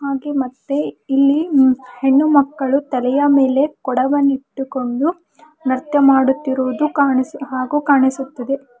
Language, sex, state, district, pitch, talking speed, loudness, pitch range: Kannada, female, Karnataka, Bidar, 275 Hz, 80 wpm, -17 LUFS, 260-285 Hz